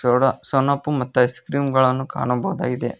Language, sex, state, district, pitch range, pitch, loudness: Kannada, male, Karnataka, Koppal, 125-135 Hz, 130 Hz, -20 LUFS